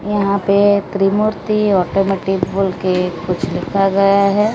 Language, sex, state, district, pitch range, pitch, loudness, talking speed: Hindi, female, Odisha, Malkangiri, 190-205 Hz, 195 Hz, -16 LUFS, 130 wpm